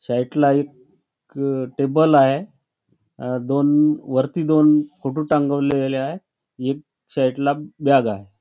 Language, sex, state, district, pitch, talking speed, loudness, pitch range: Marathi, male, Maharashtra, Chandrapur, 140 Hz, 130 wpm, -20 LUFS, 135-150 Hz